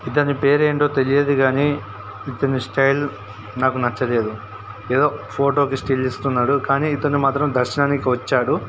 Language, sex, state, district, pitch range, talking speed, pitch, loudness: Telugu, male, Telangana, Karimnagar, 125-140 Hz, 130 wpm, 135 Hz, -19 LUFS